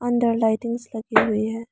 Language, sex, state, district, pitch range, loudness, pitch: Hindi, female, Arunachal Pradesh, Lower Dibang Valley, 220-235 Hz, -22 LUFS, 225 Hz